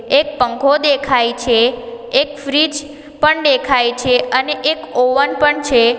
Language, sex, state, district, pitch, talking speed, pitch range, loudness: Gujarati, female, Gujarat, Valsad, 275 Hz, 140 wpm, 245-290 Hz, -14 LUFS